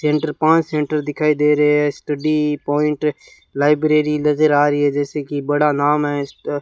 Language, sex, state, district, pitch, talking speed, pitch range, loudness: Hindi, male, Rajasthan, Bikaner, 150 Hz, 180 wpm, 145-150 Hz, -17 LUFS